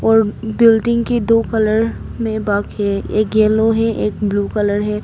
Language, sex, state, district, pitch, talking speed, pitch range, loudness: Hindi, female, Arunachal Pradesh, Papum Pare, 220 Hz, 165 wpm, 210-225 Hz, -16 LUFS